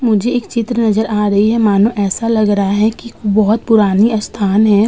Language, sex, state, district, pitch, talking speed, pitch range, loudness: Hindi, female, Uttar Pradesh, Budaun, 215 Hz, 210 wpm, 205-225 Hz, -13 LUFS